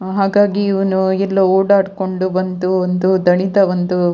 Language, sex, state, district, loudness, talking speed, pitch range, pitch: Kannada, female, Karnataka, Dakshina Kannada, -15 LUFS, 130 wpm, 185-195 Hz, 190 Hz